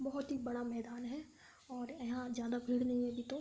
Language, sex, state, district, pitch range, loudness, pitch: Hindi, female, Uttar Pradesh, Gorakhpur, 240-265 Hz, -41 LUFS, 245 Hz